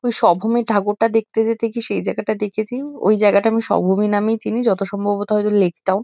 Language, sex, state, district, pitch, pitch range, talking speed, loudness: Bengali, female, West Bengal, North 24 Parganas, 215 Hz, 205-225 Hz, 230 wpm, -18 LUFS